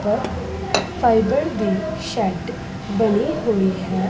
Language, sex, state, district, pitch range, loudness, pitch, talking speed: Punjabi, female, Punjab, Pathankot, 190-225 Hz, -21 LUFS, 210 Hz, 90 wpm